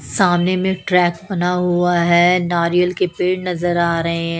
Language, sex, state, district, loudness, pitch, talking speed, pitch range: Hindi, female, Haryana, Charkhi Dadri, -17 LUFS, 175 Hz, 165 wpm, 170-180 Hz